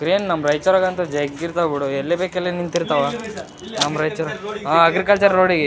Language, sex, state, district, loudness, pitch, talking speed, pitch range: Kannada, male, Karnataka, Raichur, -19 LUFS, 170 Hz, 210 wpm, 150-185 Hz